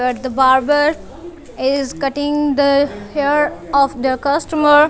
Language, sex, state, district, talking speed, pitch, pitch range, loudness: English, female, Punjab, Kapurthala, 120 wpm, 285 Hz, 270-295 Hz, -16 LUFS